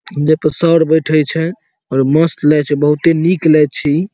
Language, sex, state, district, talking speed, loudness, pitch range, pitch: Maithili, male, Bihar, Saharsa, 200 wpm, -13 LUFS, 150-165 Hz, 155 Hz